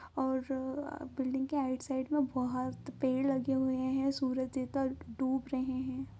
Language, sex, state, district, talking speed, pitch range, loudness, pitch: Hindi, female, Andhra Pradesh, Anantapur, 165 wpm, 260-270 Hz, -35 LUFS, 265 Hz